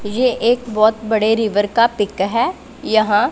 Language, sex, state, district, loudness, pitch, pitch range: Hindi, female, Punjab, Pathankot, -17 LUFS, 220 Hz, 205-230 Hz